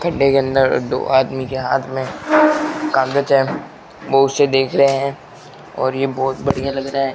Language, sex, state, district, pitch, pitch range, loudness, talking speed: Hindi, male, Rajasthan, Bikaner, 135 Hz, 135-140 Hz, -17 LUFS, 170 wpm